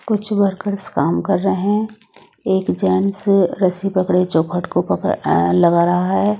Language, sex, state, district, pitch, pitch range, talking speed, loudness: Hindi, female, Odisha, Nuapada, 185 Hz, 170-200 Hz, 150 wpm, -17 LUFS